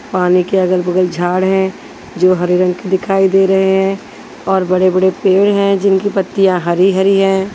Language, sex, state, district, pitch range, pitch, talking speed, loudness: Hindi, female, Maharashtra, Washim, 185-195 Hz, 190 Hz, 165 wpm, -13 LUFS